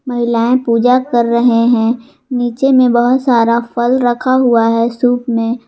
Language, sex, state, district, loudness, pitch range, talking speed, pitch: Hindi, female, Jharkhand, Garhwa, -12 LUFS, 235-250 Hz, 160 wpm, 240 Hz